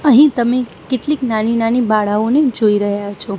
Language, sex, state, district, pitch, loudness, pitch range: Gujarati, female, Gujarat, Gandhinagar, 230 Hz, -15 LUFS, 210-255 Hz